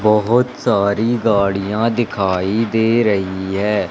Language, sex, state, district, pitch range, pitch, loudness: Hindi, male, Madhya Pradesh, Katni, 100-115 Hz, 105 Hz, -17 LUFS